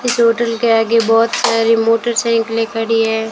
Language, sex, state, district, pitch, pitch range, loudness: Hindi, female, Rajasthan, Bikaner, 230 Hz, 225-230 Hz, -14 LUFS